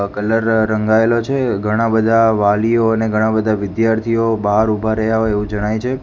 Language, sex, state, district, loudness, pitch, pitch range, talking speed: Gujarati, male, Gujarat, Gandhinagar, -16 LUFS, 110 Hz, 105-115 Hz, 180 wpm